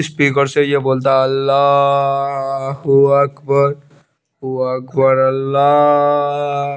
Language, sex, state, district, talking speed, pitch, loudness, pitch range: Hindi, male, Chandigarh, Chandigarh, 90 wpm, 140 Hz, -14 LUFS, 135-145 Hz